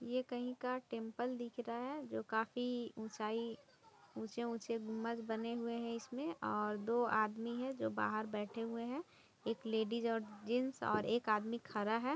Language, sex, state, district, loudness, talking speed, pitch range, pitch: Hindi, female, Bihar, East Champaran, -41 LUFS, 180 wpm, 220-245 Hz, 230 Hz